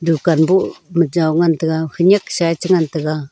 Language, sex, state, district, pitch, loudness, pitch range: Wancho, female, Arunachal Pradesh, Longding, 165 Hz, -16 LUFS, 160-175 Hz